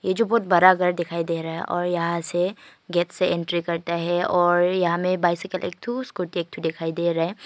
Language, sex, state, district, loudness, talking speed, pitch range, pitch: Hindi, female, Arunachal Pradesh, Longding, -23 LUFS, 240 wpm, 170-185 Hz, 175 Hz